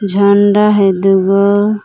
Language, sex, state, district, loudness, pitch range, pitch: Magahi, female, Jharkhand, Palamu, -10 LUFS, 195-205 Hz, 200 Hz